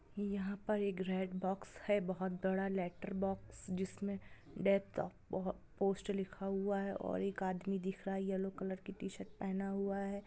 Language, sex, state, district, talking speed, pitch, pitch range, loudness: Hindi, female, Bihar, Gopalganj, 175 wpm, 195 Hz, 190-200 Hz, -40 LUFS